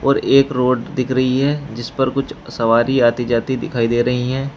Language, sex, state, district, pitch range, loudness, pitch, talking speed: Hindi, male, Uttar Pradesh, Shamli, 120-135 Hz, -17 LUFS, 130 Hz, 210 wpm